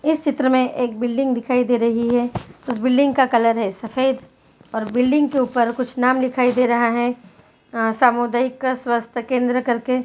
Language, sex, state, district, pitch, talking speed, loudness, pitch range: Hindi, female, Bihar, Saran, 245 Hz, 175 wpm, -19 LUFS, 235-255 Hz